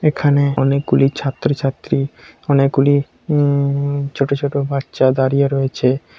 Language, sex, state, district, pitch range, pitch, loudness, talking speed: Bengali, male, West Bengal, Kolkata, 135-140 Hz, 140 Hz, -17 LUFS, 115 wpm